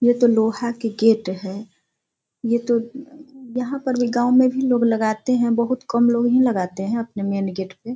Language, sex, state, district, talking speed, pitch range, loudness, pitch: Hindi, female, Bihar, Sitamarhi, 210 wpm, 215-250 Hz, -20 LUFS, 235 Hz